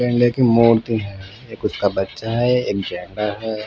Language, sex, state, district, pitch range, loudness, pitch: Hindi, male, Bihar, Patna, 100-120 Hz, -19 LUFS, 110 Hz